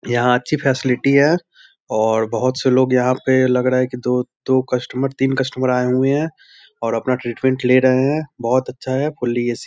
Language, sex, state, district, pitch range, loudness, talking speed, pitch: Hindi, male, Bihar, Sitamarhi, 125-135 Hz, -18 LUFS, 210 wpm, 130 Hz